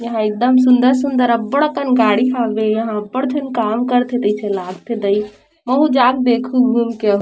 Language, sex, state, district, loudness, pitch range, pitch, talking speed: Chhattisgarhi, female, Chhattisgarh, Rajnandgaon, -16 LUFS, 215-255 Hz, 240 Hz, 190 wpm